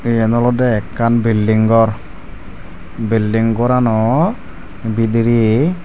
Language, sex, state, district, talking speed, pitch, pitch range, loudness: Chakma, male, Tripura, Dhalai, 80 wpm, 115 Hz, 110-120 Hz, -15 LUFS